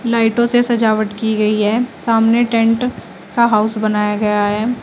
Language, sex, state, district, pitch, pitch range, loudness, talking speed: Hindi, female, Uttar Pradesh, Shamli, 225 Hz, 215-235 Hz, -15 LUFS, 160 wpm